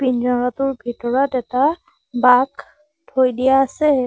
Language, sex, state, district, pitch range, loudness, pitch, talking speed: Assamese, female, Assam, Sonitpur, 250-275 Hz, -18 LUFS, 260 Hz, 105 wpm